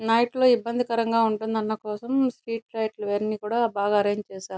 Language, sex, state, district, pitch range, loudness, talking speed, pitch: Telugu, female, Andhra Pradesh, Chittoor, 210-235 Hz, -25 LUFS, 170 wpm, 220 Hz